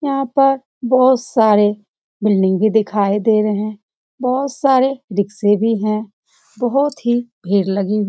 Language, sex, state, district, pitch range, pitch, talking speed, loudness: Hindi, female, Bihar, Jamui, 210-260 Hz, 220 Hz, 150 wpm, -16 LUFS